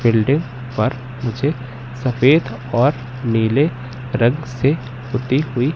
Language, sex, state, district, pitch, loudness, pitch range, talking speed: Hindi, male, Madhya Pradesh, Katni, 125 Hz, -19 LUFS, 125-135 Hz, 105 wpm